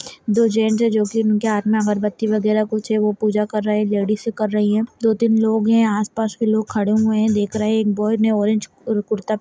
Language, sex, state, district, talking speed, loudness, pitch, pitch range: Hindi, female, Chhattisgarh, Balrampur, 240 wpm, -19 LUFS, 215 Hz, 210-220 Hz